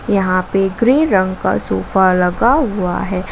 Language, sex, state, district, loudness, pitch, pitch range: Hindi, female, Jharkhand, Garhwa, -15 LUFS, 190 Hz, 185-200 Hz